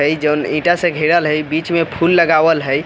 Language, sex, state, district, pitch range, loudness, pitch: Bajjika, male, Bihar, Vaishali, 150-170 Hz, -15 LUFS, 160 Hz